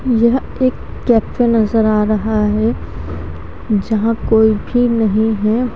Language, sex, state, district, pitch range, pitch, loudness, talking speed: Hindi, female, Haryana, Charkhi Dadri, 210-235 Hz, 220 Hz, -15 LUFS, 125 wpm